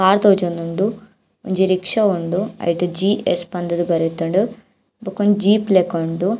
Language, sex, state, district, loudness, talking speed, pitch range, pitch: Tulu, female, Karnataka, Dakshina Kannada, -18 LUFS, 130 wpm, 175-205 Hz, 190 Hz